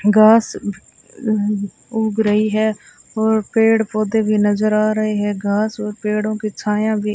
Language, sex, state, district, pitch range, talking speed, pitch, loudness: Hindi, female, Rajasthan, Bikaner, 210-220 Hz, 150 wpm, 215 Hz, -18 LUFS